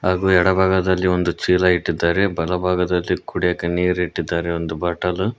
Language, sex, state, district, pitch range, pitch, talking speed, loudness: Kannada, male, Karnataka, Koppal, 85-90 Hz, 90 Hz, 120 wpm, -19 LUFS